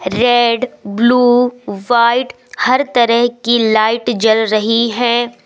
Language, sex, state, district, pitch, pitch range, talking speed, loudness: Hindi, female, Madhya Pradesh, Umaria, 235 Hz, 225-245 Hz, 110 wpm, -13 LUFS